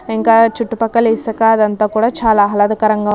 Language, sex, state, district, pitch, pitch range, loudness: Telugu, female, Andhra Pradesh, Krishna, 225 Hz, 215-230 Hz, -13 LUFS